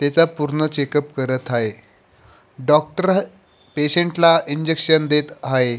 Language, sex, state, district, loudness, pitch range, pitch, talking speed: Marathi, male, Maharashtra, Pune, -18 LUFS, 130-160 Hz, 150 Hz, 125 wpm